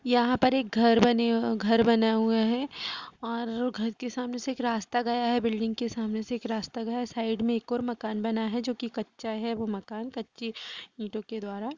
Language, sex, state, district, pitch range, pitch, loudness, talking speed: Hindi, female, Uttar Pradesh, Jalaun, 225-240 Hz, 230 Hz, -28 LUFS, 240 wpm